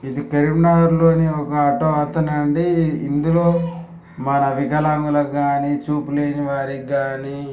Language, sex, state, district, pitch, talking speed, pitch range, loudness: Telugu, male, Telangana, Karimnagar, 145 Hz, 120 wpm, 140-160 Hz, -18 LUFS